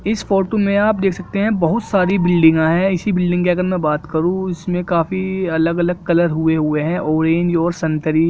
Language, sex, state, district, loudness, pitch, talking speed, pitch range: Hindi, male, Jharkhand, Jamtara, -17 LUFS, 175 Hz, 210 wpm, 165-190 Hz